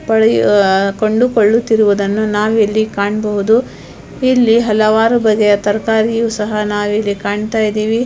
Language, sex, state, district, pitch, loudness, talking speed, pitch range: Kannada, female, Karnataka, Dharwad, 215 Hz, -13 LUFS, 90 wpm, 205-225 Hz